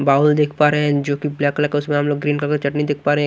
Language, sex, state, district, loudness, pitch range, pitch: Hindi, male, Odisha, Nuapada, -18 LUFS, 145-150 Hz, 145 Hz